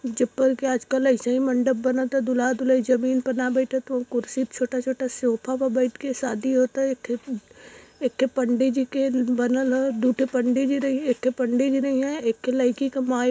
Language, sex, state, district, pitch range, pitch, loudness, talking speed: Hindi, female, Uttar Pradesh, Varanasi, 250-265 Hz, 255 Hz, -23 LUFS, 220 wpm